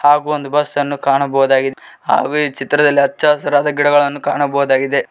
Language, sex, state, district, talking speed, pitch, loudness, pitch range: Kannada, male, Karnataka, Koppal, 140 wpm, 145 Hz, -15 LUFS, 140-145 Hz